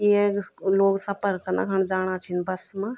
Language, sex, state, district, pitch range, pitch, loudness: Garhwali, female, Uttarakhand, Tehri Garhwal, 185-200 Hz, 195 Hz, -25 LUFS